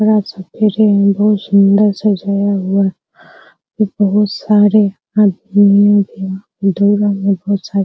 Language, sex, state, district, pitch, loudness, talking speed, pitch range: Hindi, female, Bihar, Araria, 200 Hz, -13 LUFS, 55 wpm, 195-210 Hz